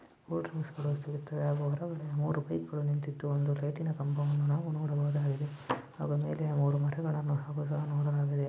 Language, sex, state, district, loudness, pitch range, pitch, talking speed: Kannada, male, Karnataka, Belgaum, -33 LUFS, 145-150 Hz, 145 Hz, 160 wpm